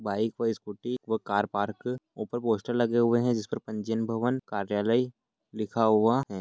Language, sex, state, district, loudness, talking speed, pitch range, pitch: Hindi, male, Chhattisgarh, Raigarh, -28 LUFS, 170 wpm, 105-120 Hz, 115 Hz